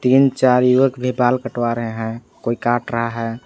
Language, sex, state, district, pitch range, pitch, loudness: Hindi, male, Jharkhand, Palamu, 115-125 Hz, 120 Hz, -18 LUFS